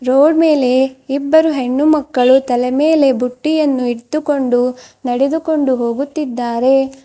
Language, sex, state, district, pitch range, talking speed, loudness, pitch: Kannada, female, Karnataka, Bidar, 250-300 Hz, 95 wpm, -14 LUFS, 270 Hz